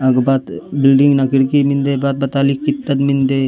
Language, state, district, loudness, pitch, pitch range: Gondi, Chhattisgarh, Sukma, -15 LUFS, 140 Hz, 135-140 Hz